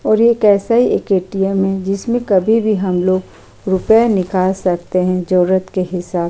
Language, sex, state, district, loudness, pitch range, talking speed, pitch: Hindi, female, Uttar Pradesh, Jyotiba Phule Nagar, -15 LUFS, 185-210 Hz, 190 wpm, 190 Hz